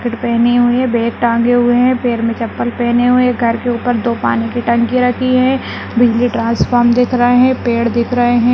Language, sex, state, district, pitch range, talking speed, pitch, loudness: Hindi, female, Rajasthan, Nagaur, 235-245 Hz, 225 wpm, 240 Hz, -13 LUFS